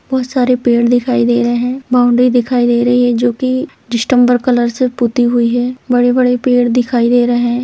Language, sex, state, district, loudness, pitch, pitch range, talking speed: Hindi, female, Chhattisgarh, Rajnandgaon, -12 LUFS, 245 Hz, 240-250 Hz, 205 wpm